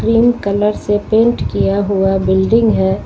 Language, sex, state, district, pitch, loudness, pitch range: Hindi, female, Uttar Pradesh, Lucknow, 205 Hz, -14 LUFS, 195-225 Hz